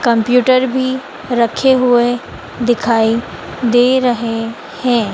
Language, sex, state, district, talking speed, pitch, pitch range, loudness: Hindi, female, Madhya Pradesh, Dhar, 95 wpm, 245 Hz, 230-255 Hz, -14 LUFS